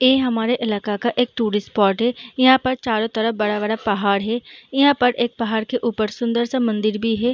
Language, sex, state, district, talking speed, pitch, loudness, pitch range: Hindi, female, Bihar, Gaya, 205 wpm, 230 Hz, -20 LUFS, 215-245 Hz